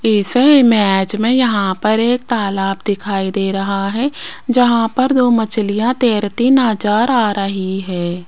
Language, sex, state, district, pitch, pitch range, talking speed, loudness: Hindi, female, Rajasthan, Jaipur, 215 Hz, 195-245 Hz, 145 wpm, -15 LUFS